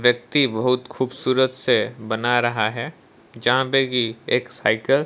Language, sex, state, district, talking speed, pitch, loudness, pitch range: Hindi, male, Odisha, Malkangiri, 155 wpm, 125 Hz, -21 LUFS, 115-130 Hz